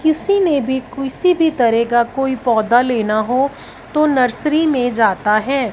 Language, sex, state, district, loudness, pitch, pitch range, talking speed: Hindi, female, Punjab, Fazilka, -16 LUFS, 260 Hz, 235-300 Hz, 165 wpm